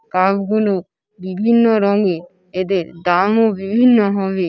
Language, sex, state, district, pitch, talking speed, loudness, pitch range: Bengali, female, West Bengal, Paschim Medinipur, 195 Hz, 120 wpm, -16 LUFS, 185-215 Hz